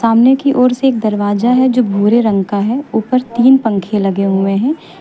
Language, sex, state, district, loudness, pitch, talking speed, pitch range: Hindi, female, Uttar Pradesh, Lucknow, -13 LUFS, 230 Hz, 215 wpm, 205-255 Hz